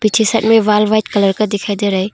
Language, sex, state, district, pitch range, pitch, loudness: Hindi, female, Arunachal Pradesh, Longding, 205-220 Hz, 215 Hz, -14 LUFS